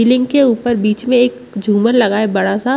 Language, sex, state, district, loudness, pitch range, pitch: Hindi, female, Chhattisgarh, Bastar, -14 LUFS, 210-250 Hz, 240 Hz